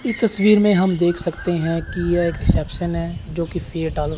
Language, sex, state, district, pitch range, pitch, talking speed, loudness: Hindi, male, Chandigarh, Chandigarh, 165-185 Hz, 175 Hz, 230 wpm, -20 LUFS